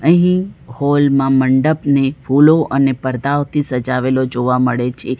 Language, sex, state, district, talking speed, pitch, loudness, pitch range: Gujarati, female, Gujarat, Valsad, 125 wpm, 135 Hz, -15 LUFS, 130-145 Hz